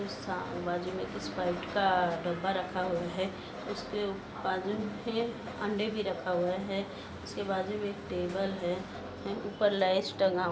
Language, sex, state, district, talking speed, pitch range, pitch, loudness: Hindi, female, Maharashtra, Solapur, 120 wpm, 180-205 Hz, 190 Hz, -33 LUFS